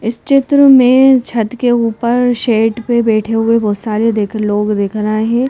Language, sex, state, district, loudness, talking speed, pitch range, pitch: Hindi, female, Madhya Pradesh, Bhopal, -12 LUFS, 185 wpm, 215-245 Hz, 230 Hz